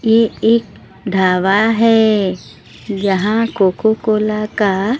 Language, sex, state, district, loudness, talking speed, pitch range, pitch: Hindi, female, Odisha, Sambalpur, -15 LUFS, 95 wpm, 195-225 Hz, 215 Hz